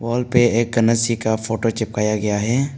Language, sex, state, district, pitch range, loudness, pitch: Hindi, male, Arunachal Pradesh, Papum Pare, 110-120 Hz, -19 LUFS, 115 Hz